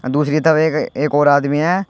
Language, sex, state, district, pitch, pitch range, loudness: Hindi, male, Uttar Pradesh, Shamli, 150 Hz, 145-160 Hz, -15 LUFS